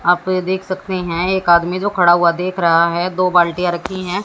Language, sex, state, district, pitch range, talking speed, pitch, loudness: Hindi, female, Haryana, Jhajjar, 175-185 Hz, 240 wpm, 180 Hz, -16 LUFS